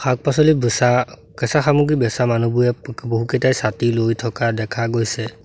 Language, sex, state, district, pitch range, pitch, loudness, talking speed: Assamese, male, Assam, Sonitpur, 115-130 Hz, 120 Hz, -18 LUFS, 145 wpm